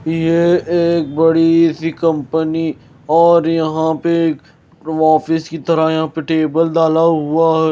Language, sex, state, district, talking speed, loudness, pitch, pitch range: Hindi, male, Bihar, Patna, 140 wpm, -15 LUFS, 160 Hz, 160-165 Hz